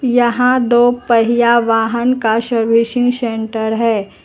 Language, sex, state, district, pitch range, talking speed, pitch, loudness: Hindi, female, Uttar Pradesh, Lucknow, 225-245 Hz, 115 wpm, 235 Hz, -14 LUFS